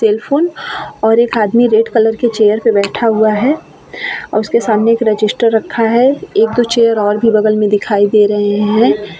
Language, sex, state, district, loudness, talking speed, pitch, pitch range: Hindi, female, Bihar, Vaishali, -12 LUFS, 190 wpm, 225 Hz, 210-235 Hz